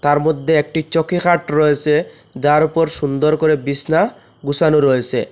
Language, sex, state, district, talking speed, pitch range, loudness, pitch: Bengali, male, Assam, Hailakandi, 135 wpm, 145-160 Hz, -16 LUFS, 155 Hz